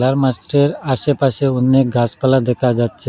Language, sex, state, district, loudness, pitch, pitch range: Bengali, male, Assam, Hailakandi, -16 LUFS, 130 Hz, 125-135 Hz